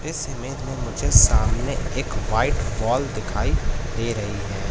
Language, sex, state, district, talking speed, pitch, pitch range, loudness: Hindi, male, Madhya Pradesh, Katni, 155 wpm, 115 Hz, 105-125 Hz, -23 LUFS